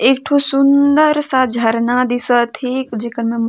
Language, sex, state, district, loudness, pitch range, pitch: Sadri, female, Chhattisgarh, Jashpur, -15 LUFS, 235-275 Hz, 250 Hz